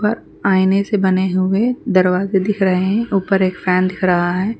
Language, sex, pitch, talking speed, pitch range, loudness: Urdu, female, 190 Hz, 180 wpm, 185-205 Hz, -16 LUFS